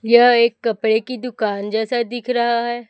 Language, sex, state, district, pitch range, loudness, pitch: Hindi, female, Chhattisgarh, Raipur, 220-245 Hz, -18 LUFS, 235 Hz